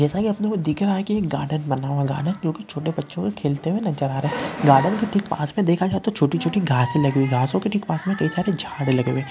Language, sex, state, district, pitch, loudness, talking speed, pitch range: Hindi, male, West Bengal, Purulia, 160 Hz, -22 LUFS, 270 wpm, 140-195 Hz